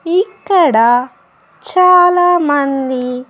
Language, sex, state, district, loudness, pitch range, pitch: Telugu, female, Andhra Pradesh, Annamaya, -12 LUFS, 255-360 Hz, 320 Hz